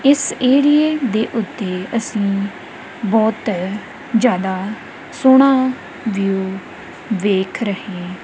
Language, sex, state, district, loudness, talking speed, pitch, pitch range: Punjabi, female, Punjab, Kapurthala, -17 LUFS, 80 wpm, 220 Hz, 195-260 Hz